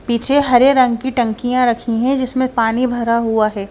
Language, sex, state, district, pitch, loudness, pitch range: Hindi, female, Punjab, Kapurthala, 245 Hz, -15 LUFS, 230-255 Hz